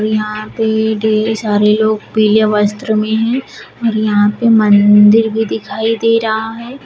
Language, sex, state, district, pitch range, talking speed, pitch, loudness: Hindi, female, Uttar Pradesh, Shamli, 215-225 Hz, 155 wpm, 220 Hz, -13 LUFS